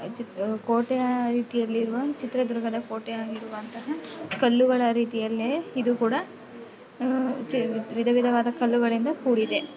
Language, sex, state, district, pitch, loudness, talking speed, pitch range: Kannada, female, Karnataka, Bellary, 240 Hz, -26 LUFS, 90 wpm, 230-255 Hz